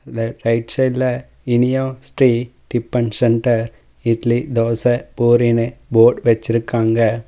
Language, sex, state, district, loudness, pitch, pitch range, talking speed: Tamil, male, Tamil Nadu, Namakkal, -17 LUFS, 120 Hz, 115-125 Hz, 100 wpm